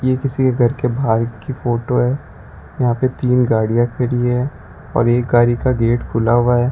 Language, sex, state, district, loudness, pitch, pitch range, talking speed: Hindi, male, Rajasthan, Bikaner, -17 LUFS, 125 Hz, 120-130 Hz, 205 wpm